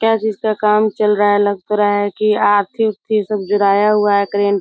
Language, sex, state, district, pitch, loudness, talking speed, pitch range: Hindi, female, Bihar, Muzaffarpur, 210 Hz, -15 LUFS, 245 wpm, 205-215 Hz